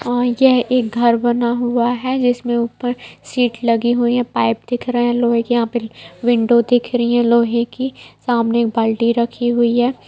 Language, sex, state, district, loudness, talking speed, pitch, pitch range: Hindi, female, Bihar, Saran, -17 LUFS, 195 wpm, 240 Hz, 235-245 Hz